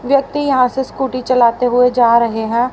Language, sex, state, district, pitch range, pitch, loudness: Hindi, female, Haryana, Rohtak, 240-265 Hz, 250 Hz, -14 LUFS